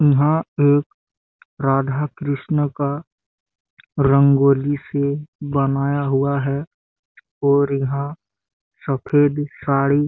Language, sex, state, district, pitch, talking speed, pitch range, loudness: Hindi, male, Chhattisgarh, Bastar, 140 Hz, 85 wpm, 140-145 Hz, -19 LUFS